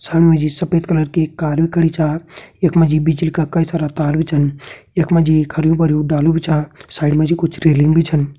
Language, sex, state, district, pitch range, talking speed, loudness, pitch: Garhwali, male, Uttarakhand, Tehri Garhwal, 150-165 Hz, 250 wpm, -16 LUFS, 160 Hz